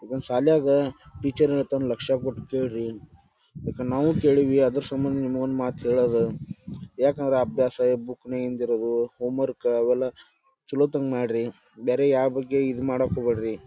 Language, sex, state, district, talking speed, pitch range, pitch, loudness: Kannada, male, Karnataka, Dharwad, 125 wpm, 120-135 Hz, 130 Hz, -25 LUFS